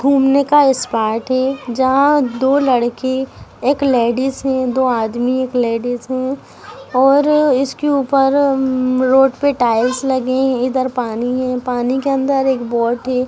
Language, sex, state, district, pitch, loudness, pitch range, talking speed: Hindi, female, Bihar, East Champaran, 260 Hz, -15 LUFS, 250-270 Hz, 155 wpm